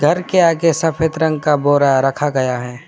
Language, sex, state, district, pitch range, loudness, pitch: Hindi, male, West Bengal, Alipurduar, 135-160 Hz, -15 LUFS, 150 Hz